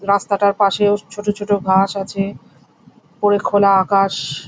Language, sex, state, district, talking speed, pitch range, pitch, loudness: Bengali, female, West Bengal, Jhargram, 120 wpm, 195-205 Hz, 200 Hz, -17 LUFS